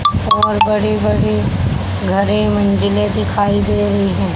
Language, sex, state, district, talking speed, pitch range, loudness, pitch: Hindi, female, Haryana, Charkhi Dadri, 125 wpm, 100-105 Hz, -15 LUFS, 105 Hz